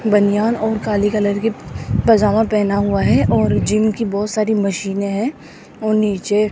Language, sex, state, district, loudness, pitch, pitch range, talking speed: Hindi, female, Rajasthan, Jaipur, -17 LUFS, 210 Hz, 200-215 Hz, 175 wpm